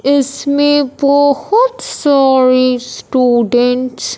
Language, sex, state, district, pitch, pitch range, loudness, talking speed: Hindi, male, Punjab, Fazilka, 275 Hz, 255-285 Hz, -12 LUFS, 70 wpm